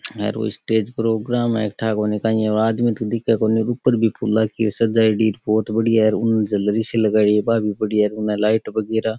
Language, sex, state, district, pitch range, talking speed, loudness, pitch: Rajasthani, male, Rajasthan, Nagaur, 105-115 Hz, 230 wpm, -19 LUFS, 110 Hz